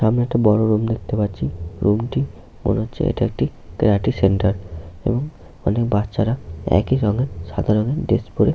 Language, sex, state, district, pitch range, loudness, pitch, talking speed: Bengali, male, West Bengal, Paschim Medinipur, 100-120 Hz, -20 LUFS, 110 Hz, 155 wpm